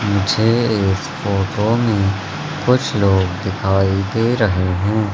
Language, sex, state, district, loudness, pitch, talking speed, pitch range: Hindi, male, Madhya Pradesh, Katni, -17 LUFS, 100 Hz, 115 wpm, 95-110 Hz